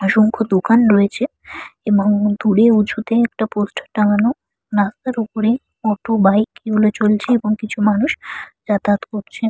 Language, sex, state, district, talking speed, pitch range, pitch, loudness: Bengali, female, West Bengal, Purulia, 120 wpm, 205-225 Hz, 215 Hz, -17 LUFS